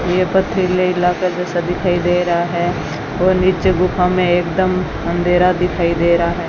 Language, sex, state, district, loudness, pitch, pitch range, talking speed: Hindi, female, Rajasthan, Bikaner, -16 LUFS, 180 Hz, 175-185 Hz, 165 wpm